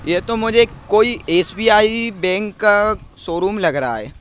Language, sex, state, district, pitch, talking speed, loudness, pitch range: Hindi, male, Madhya Pradesh, Bhopal, 210 Hz, 170 wpm, -16 LUFS, 185-225 Hz